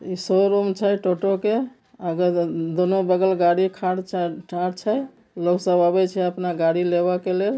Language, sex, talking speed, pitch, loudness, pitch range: Maithili, male, 165 wpm, 185 Hz, -22 LUFS, 175-195 Hz